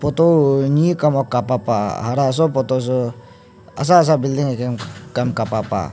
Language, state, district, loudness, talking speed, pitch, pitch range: Nyishi, Arunachal Pradesh, Papum Pare, -18 LUFS, 150 wpm, 130 Hz, 120-145 Hz